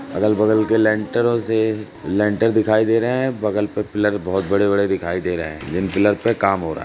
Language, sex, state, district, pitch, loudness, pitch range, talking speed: Hindi, male, Uttar Pradesh, Jalaun, 105 Hz, -19 LUFS, 95-110 Hz, 230 wpm